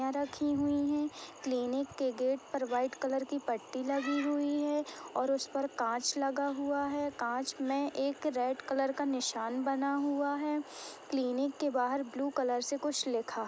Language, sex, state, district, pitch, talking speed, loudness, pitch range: Hindi, female, Uttar Pradesh, Budaun, 275 Hz, 175 wpm, -34 LUFS, 255-285 Hz